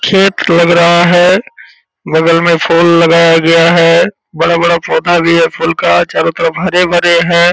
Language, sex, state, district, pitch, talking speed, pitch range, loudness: Hindi, male, Bihar, Purnia, 170 Hz, 160 wpm, 165-175 Hz, -9 LUFS